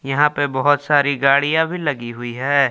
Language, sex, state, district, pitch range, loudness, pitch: Hindi, male, Jharkhand, Palamu, 135-145 Hz, -18 LUFS, 140 Hz